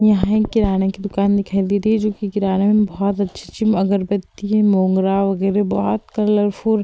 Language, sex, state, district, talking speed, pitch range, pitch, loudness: Hindi, female, Uttar Pradesh, Hamirpur, 200 wpm, 195-210 Hz, 200 Hz, -18 LUFS